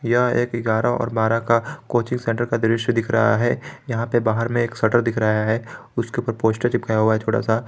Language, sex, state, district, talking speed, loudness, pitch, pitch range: Hindi, male, Jharkhand, Garhwa, 235 wpm, -21 LUFS, 115 Hz, 110-120 Hz